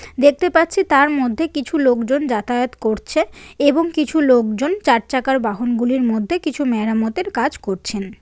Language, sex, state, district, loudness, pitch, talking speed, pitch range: Bengali, female, West Bengal, Jalpaiguri, -18 LUFS, 265 Hz, 145 wpm, 235-305 Hz